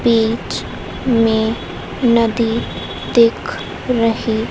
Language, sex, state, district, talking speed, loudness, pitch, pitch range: Hindi, female, Madhya Pradesh, Dhar, 65 wpm, -17 LUFS, 230 Hz, 225-235 Hz